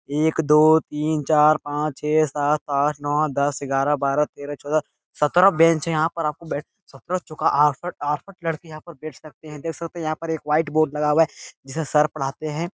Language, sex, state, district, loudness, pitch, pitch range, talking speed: Hindi, male, Bihar, Jahanabad, -22 LUFS, 155 Hz, 150-160 Hz, 215 wpm